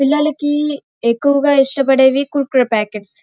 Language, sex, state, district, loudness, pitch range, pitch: Telugu, female, Andhra Pradesh, Krishna, -15 LUFS, 255-290 Hz, 275 Hz